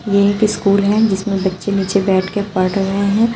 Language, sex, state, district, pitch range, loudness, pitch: Hindi, female, Uttar Pradesh, Shamli, 195-205 Hz, -16 LUFS, 200 Hz